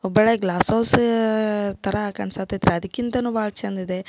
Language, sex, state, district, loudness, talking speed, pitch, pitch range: Kannada, female, Karnataka, Belgaum, -21 LUFS, 145 wpm, 210 Hz, 190-225 Hz